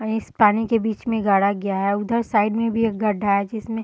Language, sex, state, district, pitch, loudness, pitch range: Hindi, female, Bihar, Sitamarhi, 220 Hz, -21 LUFS, 200-225 Hz